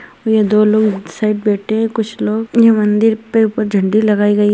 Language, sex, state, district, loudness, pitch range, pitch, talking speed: Hindi, female, Maharashtra, Chandrapur, -14 LUFS, 210-220 Hz, 215 Hz, 210 wpm